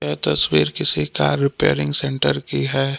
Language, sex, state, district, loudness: Hindi, male, Jharkhand, Palamu, -16 LUFS